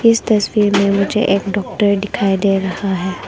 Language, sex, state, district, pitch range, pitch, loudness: Hindi, female, Arunachal Pradesh, Longding, 195-210 Hz, 200 Hz, -16 LUFS